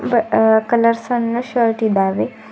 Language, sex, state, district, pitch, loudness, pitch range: Kannada, female, Karnataka, Bidar, 230 Hz, -16 LUFS, 220-240 Hz